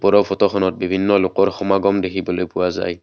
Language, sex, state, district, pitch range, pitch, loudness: Assamese, male, Assam, Kamrup Metropolitan, 90-100 Hz, 95 Hz, -18 LUFS